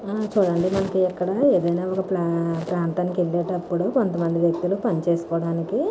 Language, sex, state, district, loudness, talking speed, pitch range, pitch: Telugu, female, Andhra Pradesh, Visakhapatnam, -23 LUFS, 130 wpm, 170-190 Hz, 180 Hz